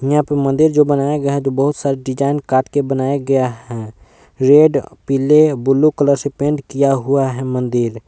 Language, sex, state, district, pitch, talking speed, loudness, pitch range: Hindi, male, Jharkhand, Palamu, 140 Hz, 195 wpm, -15 LUFS, 130-145 Hz